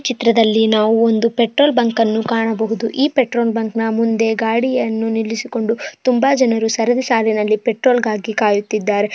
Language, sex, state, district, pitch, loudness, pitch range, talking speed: Kannada, female, Karnataka, Bijapur, 225 Hz, -16 LUFS, 220-240 Hz, 145 wpm